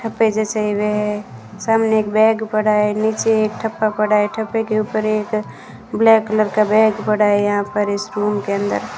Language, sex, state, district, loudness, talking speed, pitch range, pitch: Hindi, female, Rajasthan, Bikaner, -17 LUFS, 200 wpm, 210-220 Hz, 215 Hz